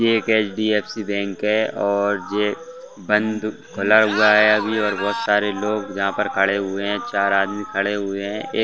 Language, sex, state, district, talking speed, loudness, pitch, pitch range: Hindi, male, Chhattisgarh, Bastar, 185 wpm, -20 LUFS, 105 Hz, 100-110 Hz